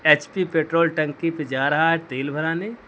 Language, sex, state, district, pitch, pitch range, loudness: Hindi, male, Uttar Pradesh, Lucknow, 160 Hz, 150-165 Hz, -22 LUFS